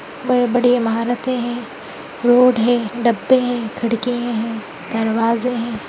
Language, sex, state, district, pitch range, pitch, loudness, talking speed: Hindi, female, Bihar, Madhepura, 230-245 Hz, 240 Hz, -18 LUFS, 120 wpm